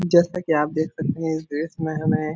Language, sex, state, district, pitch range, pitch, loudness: Hindi, male, Bihar, Supaul, 155-165 Hz, 160 Hz, -23 LUFS